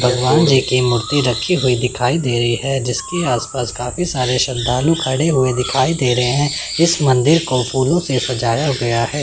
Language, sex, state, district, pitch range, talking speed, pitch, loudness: Hindi, male, Chandigarh, Chandigarh, 125-145 Hz, 190 wpm, 130 Hz, -16 LUFS